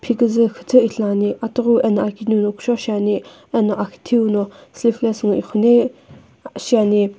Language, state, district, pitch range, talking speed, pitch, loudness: Sumi, Nagaland, Kohima, 205-240 Hz, 135 wpm, 225 Hz, -18 LUFS